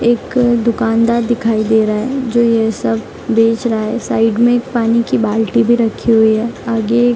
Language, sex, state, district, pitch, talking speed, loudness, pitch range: Hindi, female, Bihar, East Champaran, 230 Hz, 200 wpm, -14 LUFS, 225-235 Hz